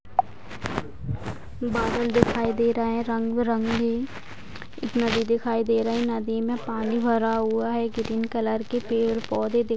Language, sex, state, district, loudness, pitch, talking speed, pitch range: Hindi, female, Bihar, Purnia, -25 LUFS, 230 Hz, 135 wpm, 225-235 Hz